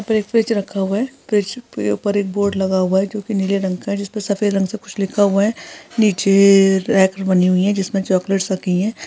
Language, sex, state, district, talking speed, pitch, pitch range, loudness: Hindi, female, Chhattisgarh, Sarguja, 230 wpm, 200 Hz, 190-210 Hz, -17 LUFS